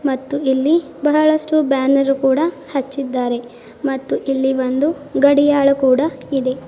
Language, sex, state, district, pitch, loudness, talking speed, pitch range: Kannada, female, Karnataka, Bidar, 275 Hz, -17 LUFS, 110 wpm, 265-290 Hz